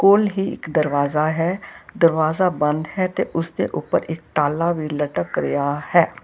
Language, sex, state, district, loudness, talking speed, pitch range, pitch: Punjabi, female, Karnataka, Bangalore, -21 LUFS, 165 wpm, 150-180 Hz, 160 Hz